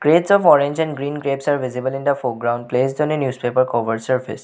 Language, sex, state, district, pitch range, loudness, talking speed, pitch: English, male, Assam, Sonitpur, 125-145 Hz, -19 LUFS, 215 wpm, 135 Hz